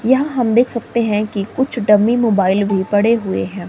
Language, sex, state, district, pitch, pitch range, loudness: Hindi, female, Himachal Pradesh, Shimla, 220 Hz, 200-240 Hz, -16 LUFS